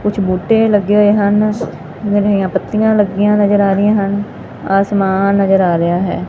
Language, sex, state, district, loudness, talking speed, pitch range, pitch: Punjabi, female, Punjab, Fazilka, -13 LUFS, 155 wpm, 195-210 Hz, 205 Hz